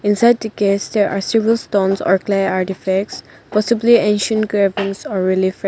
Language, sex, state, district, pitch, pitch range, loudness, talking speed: English, female, Nagaland, Dimapur, 200 Hz, 190-215 Hz, -16 LUFS, 160 wpm